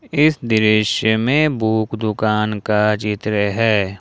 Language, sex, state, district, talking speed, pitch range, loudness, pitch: Hindi, male, Jharkhand, Ranchi, 120 wpm, 105-115 Hz, -17 LUFS, 110 Hz